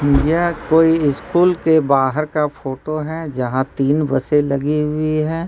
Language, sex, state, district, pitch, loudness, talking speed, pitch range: Hindi, male, Jharkhand, Ranchi, 150 Hz, -17 LUFS, 155 wpm, 140-160 Hz